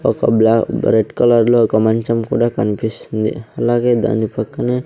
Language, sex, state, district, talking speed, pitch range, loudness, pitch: Telugu, male, Andhra Pradesh, Sri Satya Sai, 160 wpm, 110-120 Hz, -16 LUFS, 115 Hz